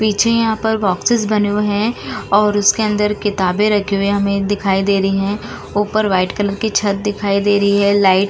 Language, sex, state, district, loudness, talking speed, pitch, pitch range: Hindi, female, Uttar Pradesh, Jalaun, -16 LUFS, 210 wpm, 205 Hz, 200-210 Hz